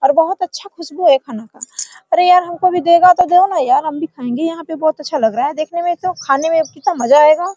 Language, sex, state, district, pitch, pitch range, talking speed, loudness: Hindi, female, Bihar, Araria, 330 Hz, 300-360 Hz, 280 wpm, -14 LUFS